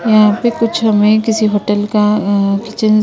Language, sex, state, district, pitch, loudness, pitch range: Hindi, female, Punjab, Kapurthala, 215 Hz, -13 LUFS, 210-225 Hz